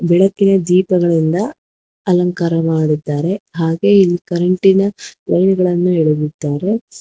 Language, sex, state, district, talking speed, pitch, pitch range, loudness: Kannada, female, Karnataka, Bangalore, 95 wpm, 180 Hz, 165-195 Hz, -15 LUFS